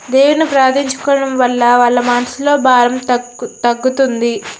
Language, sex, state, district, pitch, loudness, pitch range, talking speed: Telugu, female, Andhra Pradesh, Srikakulam, 255 Hz, -13 LUFS, 245-270 Hz, 105 wpm